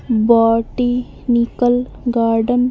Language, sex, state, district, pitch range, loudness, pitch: Hindi, female, Maharashtra, Mumbai Suburban, 230-245 Hz, -16 LUFS, 240 Hz